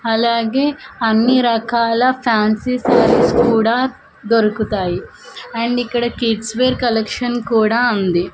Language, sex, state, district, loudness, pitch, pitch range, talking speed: Telugu, female, Andhra Pradesh, Manyam, -16 LUFS, 235 Hz, 220-245 Hz, 100 wpm